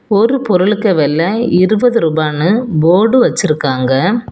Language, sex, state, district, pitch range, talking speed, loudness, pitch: Tamil, female, Tamil Nadu, Kanyakumari, 155-225 Hz, 95 wpm, -12 LUFS, 185 Hz